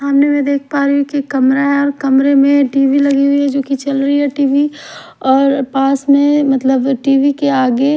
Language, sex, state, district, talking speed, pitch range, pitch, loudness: Hindi, female, Odisha, Khordha, 240 wpm, 275-285 Hz, 280 Hz, -13 LUFS